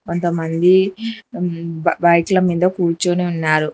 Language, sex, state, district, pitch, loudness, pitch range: Telugu, female, Telangana, Hyderabad, 175 Hz, -17 LUFS, 170-185 Hz